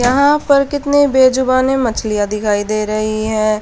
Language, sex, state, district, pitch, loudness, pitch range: Hindi, female, Haryana, Charkhi Dadri, 245 Hz, -14 LUFS, 215-275 Hz